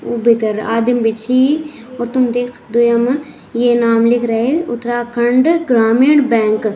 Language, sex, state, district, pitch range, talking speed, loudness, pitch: Garhwali, male, Uttarakhand, Tehri Garhwal, 230-255 Hz, 160 wpm, -14 LUFS, 240 Hz